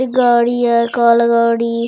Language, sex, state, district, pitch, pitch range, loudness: Chhattisgarhi, female, Chhattisgarh, Raigarh, 235 Hz, 235-240 Hz, -13 LUFS